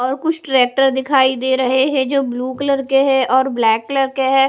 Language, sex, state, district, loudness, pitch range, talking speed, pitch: Hindi, female, Odisha, Nuapada, -16 LUFS, 260-270 Hz, 225 wpm, 265 Hz